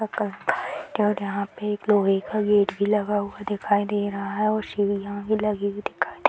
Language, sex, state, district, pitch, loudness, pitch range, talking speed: Hindi, female, Bihar, Purnia, 205 Hz, -25 LUFS, 200-210 Hz, 210 wpm